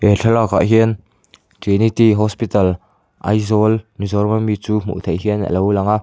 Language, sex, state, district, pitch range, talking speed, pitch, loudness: Mizo, male, Mizoram, Aizawl, 100-110 Hz, 160 wpm, 105 Hz, -16 LUFS